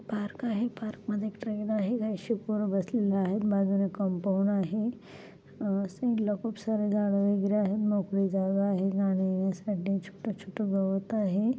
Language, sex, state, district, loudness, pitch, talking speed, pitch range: Marathi, female, Maharashtra, Pune, -30 LUFS, 205 Hz, 140 wpm, 195-215 Hz